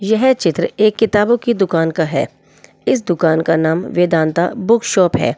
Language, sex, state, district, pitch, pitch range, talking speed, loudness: Hindi, female, Delhi, New Delhi, 175 Hz, 160-220 Hz, 180 wpm, -15 LUFS